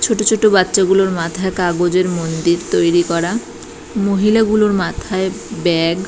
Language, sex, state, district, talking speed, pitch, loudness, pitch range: Bengali, female, West Bengal, Purulia, 140 wpm, 185 Hz, -16 LUFS, 175-205 Hz